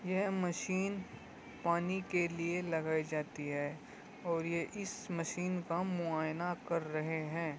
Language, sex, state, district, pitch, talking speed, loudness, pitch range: Hindi, male, Uttar Pradesh, Muzaffarnagar, 170 Hz, 135 wpm, -37 LUFS, 160-180 Hz